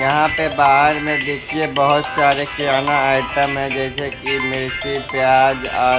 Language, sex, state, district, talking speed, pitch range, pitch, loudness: Hindi, male, Bihar, West Champaran, 150 wpm, 135-145 Hz, 140 Hz, -16 LUFS